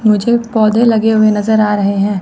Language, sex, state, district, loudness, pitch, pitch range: Hindi, female, Chandigarh, Chandigarh, -12 LUFS, 215 Hz, 205-225 Hz